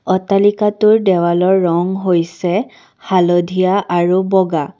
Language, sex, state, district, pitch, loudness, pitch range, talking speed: Assamese, female, Assam, Kamrup Metropolitan, 185 Hz, -14 LUFS, 175-195 Hz, 90 wpm